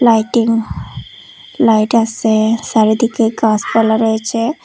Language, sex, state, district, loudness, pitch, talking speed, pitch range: Bengali, female, Tripura, Unakoti, -14 LUFS, 225 Hz, 75 wpm, 220-230 Hz